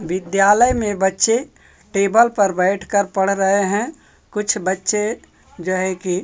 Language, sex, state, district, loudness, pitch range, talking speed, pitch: Hindi, male, Bihar, Kaimur, -18 LUFS, 185-210 Hz, 135 wpm, 195 Hz